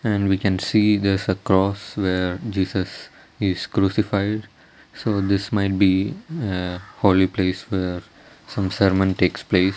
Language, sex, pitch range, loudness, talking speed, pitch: English, male, 95-100 Hz, -21 LUFS, 145 wpm, 95 Hz